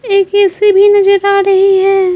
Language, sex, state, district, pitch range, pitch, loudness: Hindi, female, Bihar, Patna, 390-400 Hz, 395 Hz, -9 LUFS